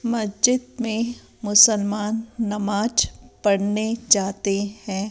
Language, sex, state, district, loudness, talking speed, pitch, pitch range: Hindi, female, Rajasthan, Jaipur, -21 LUFS, 80 wpm, 215 Hz, 205-230 Hz